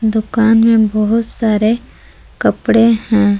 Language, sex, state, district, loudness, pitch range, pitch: Hindi, female, Jharkhand, Palamu, -13 LUFS, 215-230 Hz, 220 Hz